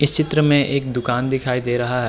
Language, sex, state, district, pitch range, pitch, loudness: Hindi, male, Uttarakhand, Tehri Garhwal, 125-145 Hz, 130 Hz, -19 LUFS